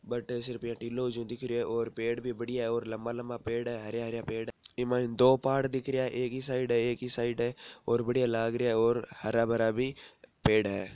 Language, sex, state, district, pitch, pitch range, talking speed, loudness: Marwari, male, Rajasthan, Nagaur, 120 Hz, 115-125 Hz, 265 wpm, -31 LUFS